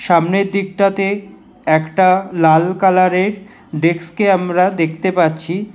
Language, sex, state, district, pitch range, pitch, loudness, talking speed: Bengali, male, West Bengal, Alipurduar, 170-195 Hz, 185 Hz, -15 LUFS, 95 wpm